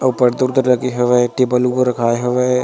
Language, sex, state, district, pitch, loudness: Chhattisgarhi, male, Chhattisgarh, Sarguja, 125 Hz, -16 LUFS